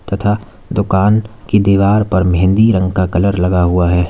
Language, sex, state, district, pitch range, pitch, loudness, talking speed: Hindi, male, Uttar Pradesh, Lalitpur, 90-105 Hz, 95 Hz, -13 LUFS, 175 wpm